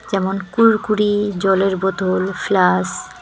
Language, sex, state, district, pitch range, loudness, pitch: Bengali, female, West Bengal, Cooch Behar, 190-205 Hz, -17 LUFS, 195 Hz